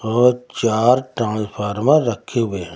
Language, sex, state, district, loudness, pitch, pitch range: Hindi, male, Uttar Pradesh, Lucknow, -18 LUFS, 115 Hz, 105-125 Hz